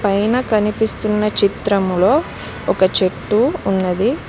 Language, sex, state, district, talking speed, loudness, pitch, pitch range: Telugu, female, Telangana, Mahabubabad, 85 wpm, -16 LUFS, 205 Hz, 190-215 Hz